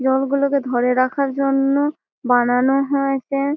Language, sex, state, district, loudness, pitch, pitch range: Bengali, female, West Bengal, Malda, -18 LUFS, 275 Hz, 255-280 Hz